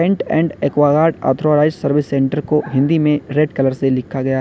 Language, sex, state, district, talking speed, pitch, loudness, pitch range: Hindi, male, Uttar Pradesh, Lalitpur, 205 wpm, 145 Hz, -16 LUFS, 135-155 Hz